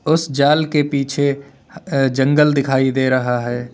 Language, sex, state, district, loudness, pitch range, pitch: Hindi, male, Uttar Pradesh, Lalitpur, -17 LUFS, 130-150 Hz, 140 Hz